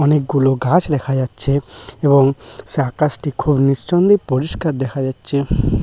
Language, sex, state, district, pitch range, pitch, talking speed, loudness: Bengali, male, West Bengal, Paschim Medinipur, 135-150 Hz, 140 Hz, 125 wpm, -16 LUFS